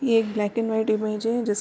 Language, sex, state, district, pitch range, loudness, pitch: Hindi, female, Bihar, Darbhanga, 210-230 Hz, -24 LUFS, 220 Hz